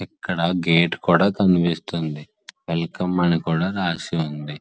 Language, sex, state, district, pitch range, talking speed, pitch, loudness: Telugu, male, Andhra Pradesh, Srikakulam, 80-90 Hz, 115 wpm, 85 Hz, -21 LUFS